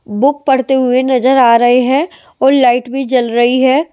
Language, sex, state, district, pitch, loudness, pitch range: Hindi, male, Delhi, New Delhi, 260 Hz, -11 LUFS, 245-270 Hz